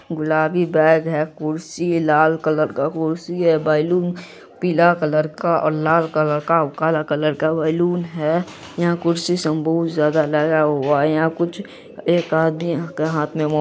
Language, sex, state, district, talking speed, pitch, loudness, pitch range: Hindi, female, Bihar, Araria, 165 wpm, 160 Hz, -19 LUFS, 155-170 Hz